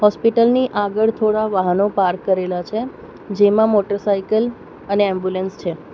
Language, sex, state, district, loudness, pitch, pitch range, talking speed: Gujarati, female, Gujarat, Valsad, -18 LUFS, 205 Hz, 190-220 Hz, 120 wpm